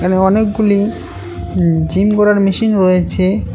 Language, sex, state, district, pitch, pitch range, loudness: Bengali, male, West Bengal, Cooch Behar, 190 Hz, 165-205 Hz, -13 LUFS